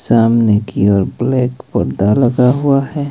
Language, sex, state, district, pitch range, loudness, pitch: Hindi, male, Himachal Pradesh, Shimla, 105-130 Hz, -14 LUFS, 120 Hz